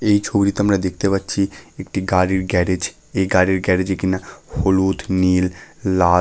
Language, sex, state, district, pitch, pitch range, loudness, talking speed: Bengali, male, West Bengal, Malda, 95 Hz, 90-100 Hz, -19 LUFS, 155 wpm